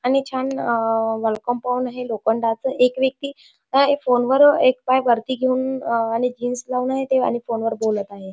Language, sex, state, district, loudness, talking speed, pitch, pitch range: Marathi, female, Maharashtra, Chandrapur, -20 LUFS, 160 wpm, 250 Hz, 230-260 Hz